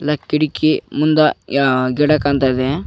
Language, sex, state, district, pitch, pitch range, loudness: Kannada, male, Karnataka, Koppal, 145 Hz, 135-155 Hz, -16 LUFS